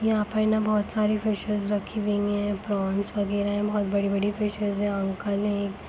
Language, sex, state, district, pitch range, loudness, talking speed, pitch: Hindi, female, Chhattisgarh, Sarguja, 200-210 Hz, -26 LUFS, 195 wpm, 205 Hz